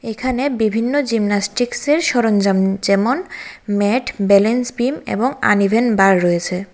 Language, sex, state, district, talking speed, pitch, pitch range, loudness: Bengali, female, Tripura, West Tripura, 105 wpm, 225 Hz, 200-250 Hz, -17 LUFS